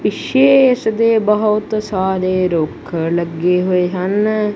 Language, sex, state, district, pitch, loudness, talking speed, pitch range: Punjabi, female, Punjab, Kapurthala, 200 Hz, -15 LUFS, 105 wpm, 180-215 Hz